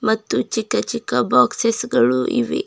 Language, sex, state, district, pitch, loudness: Kannada, female, Karnataka, Bidar, 220 Hz, -19 LUFS